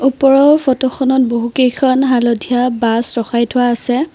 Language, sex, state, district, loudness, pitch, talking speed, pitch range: Assamese, female, Assam, Kamrup Metropolitan, -13 LUFS, 255 Hz, 130 wpm, 240-265 Hz